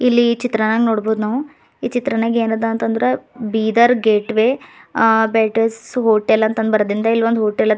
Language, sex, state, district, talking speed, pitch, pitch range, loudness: Kannada, female, Karnataka, Bidar, 160 wpm, 225 Hz, 220-235 Hz, -17 LUFS